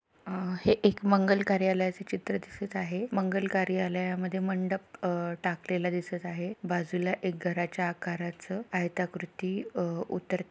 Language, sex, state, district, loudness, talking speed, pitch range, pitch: Marathi, female, Maharashtra, Pune, -31 LUFS, 120 wpm, 180-195 Hz, 185 Hz